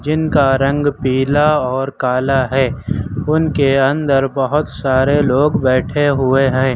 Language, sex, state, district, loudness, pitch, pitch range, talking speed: Hindi, male, Uttar Pradesh, Lucknow, -15 LUFS, 135 Hz, 130-145 Hz, 125 wpm